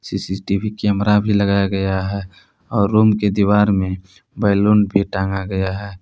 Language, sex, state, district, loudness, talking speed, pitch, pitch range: Hindi, male, Jharkhand, Palamu, -18 LUFS, 160 wpm, 100 Hz, 95-105 Hz